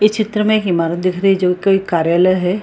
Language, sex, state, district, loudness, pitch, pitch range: Hindi, female, Bihar, Purnia, -15 LUFS, 185 Hz, 180-205 Hz